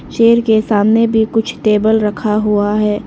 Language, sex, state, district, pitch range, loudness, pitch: Hindi, female, Arunachal Pradesh, Lower Dibang Valley, 210-225 Hz, -13 LUFS, 215 Hz